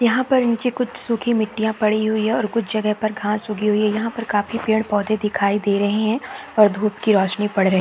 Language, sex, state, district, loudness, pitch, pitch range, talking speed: Hindi, female, Chhattisgarh, Raigarh, -20 LUFS, 215 Hz, 210-230 Hz, 245 wpm